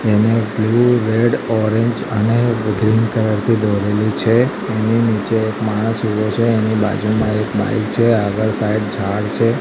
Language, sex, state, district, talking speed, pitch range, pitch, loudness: Gujarati, male, Gujarat, Gandhinagar, 155 wpm, 105-115 Hz, 110 Hz, -16 LUFS